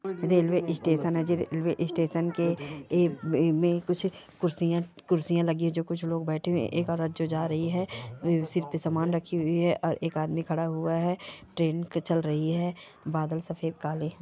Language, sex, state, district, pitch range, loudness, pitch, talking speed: Hindi, female, Bihar, Darbhanga, 160-170 Hz, -28 LUFS, 165 Hz, 185 wpm